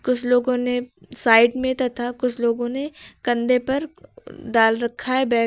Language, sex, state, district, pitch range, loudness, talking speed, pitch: Hindi, female, Uttar Pradesh, Lucknow, 235-260 Hz, -21 LUFS, 175 wpm, 245 Hz